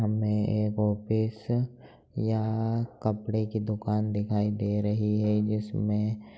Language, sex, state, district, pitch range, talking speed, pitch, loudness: Hindi, male, Bihar, Jahanabad, 105-110 Hz, 120 wpm, 105 Hz, -29 LUFS